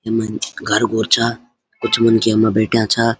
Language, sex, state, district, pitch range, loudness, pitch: Garhwali, male, Uttarakhand, Uttarkashi, 110-115 Hz, -16 LUFS, 115 Hz